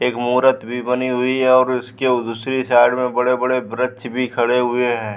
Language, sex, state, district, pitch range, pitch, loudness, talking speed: Hindi, male, Bihar, Vaishali, 120-130 Hz, 125 Hz, -18 LUFS, 210 wpm